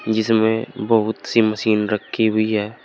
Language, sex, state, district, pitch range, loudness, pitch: Hindi, male, Uttar Pradesh, Saharanpur, 105-110 Hz, -19 LUFS, 110 Hz